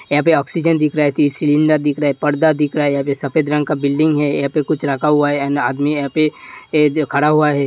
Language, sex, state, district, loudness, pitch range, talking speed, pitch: Hindi, male, Uttar Pradesh, Hamirpur, -16 LUFS, 145-155 Hz, 260 wpm, 150 Hz